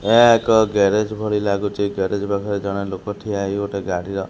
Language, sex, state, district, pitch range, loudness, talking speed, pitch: Odia, male, Odisha, Khordha, 100-105 Hz, -19 LUFS, 195 wpm, 100 Hz